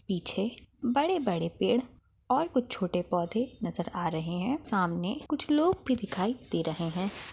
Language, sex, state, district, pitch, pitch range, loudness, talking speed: Hindi, female, Chhattisgarh, Balrampur, 205 Hz, 175-255 Hz, -30 LUFS, 165 wpm